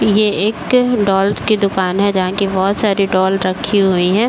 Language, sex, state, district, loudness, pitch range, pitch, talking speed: Hindi, female, Uttar Pradesh, Varanasi, -15 LUFS, 190-210 Hz, 200 Hz, 195 wpm